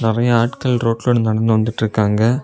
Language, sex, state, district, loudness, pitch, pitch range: Tamil, male, Tamil Nadu, Kanyakumari, -17 LUFS, 115 Hz, 110-120 Hz